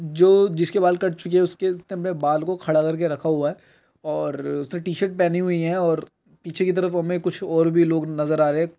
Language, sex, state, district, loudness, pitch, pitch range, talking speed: Hindi, male, Uttar Pradesh, Budaun, -22 LUFS, 170 Hz, 160-180 Hz, 240 wpm